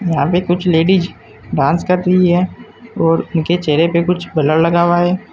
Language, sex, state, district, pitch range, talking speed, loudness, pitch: Hindi, male, Uttar Pradesh, Saharanpur, 165-180 Hz, 190 wpm, -14 LUFS, 175 Hz